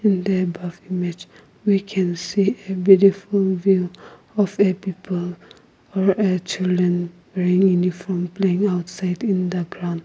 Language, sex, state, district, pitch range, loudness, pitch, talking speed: English, female, Nagaland, Kohima, 180-195 Hz, -21 LUFS, 185 Hz, 135 wpm